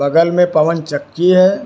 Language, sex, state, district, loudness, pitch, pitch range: Hindi, male, Karnataka, Bangalore, -14 LUFS, 165 Hz, 155-180 Hz